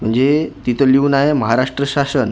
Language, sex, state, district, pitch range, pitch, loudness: Marathi, male, Maharashtra, Gondia, 125-140 Hz, 135 Hz, -15 LUFS